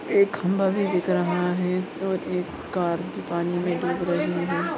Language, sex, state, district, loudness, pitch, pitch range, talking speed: Hindi, male, Maharashtra, Nagpur, -25 LUFS, 180 Hz, 175-185 Hz, 190 wpm